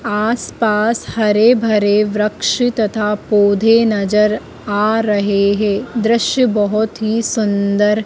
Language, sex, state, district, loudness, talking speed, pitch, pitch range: Hindi, female, Madhya Pradesh, Dhar, -15 LUFS, 110 wpm, 210 Hz, 205-225 Hz